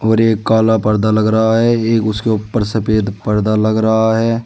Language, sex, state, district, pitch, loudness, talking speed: Hindi, male, Uttar Pradesh, Shamli, 110 Hz, -14 LUFS, 200 wpm